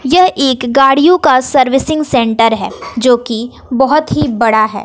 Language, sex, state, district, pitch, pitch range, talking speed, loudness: Hindi, female, Bihar, West Champaran, 260 Hz, 230-285 Hz, 150 wpm, -11 LUFS